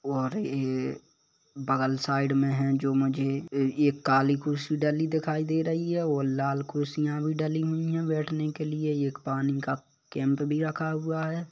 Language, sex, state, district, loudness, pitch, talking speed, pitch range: Hindi, male, Chhattisgarh, Kabirdham, -28 LUFS, 145 Hz, 185 wpm, 135-155 Hz